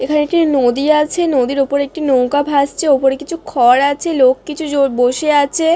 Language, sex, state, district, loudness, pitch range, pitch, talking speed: Bengali, female, West Bengal, Dakshin Dinajpur, -14 LUFS, 270-305 Hz, 285 Hz, 185 wpm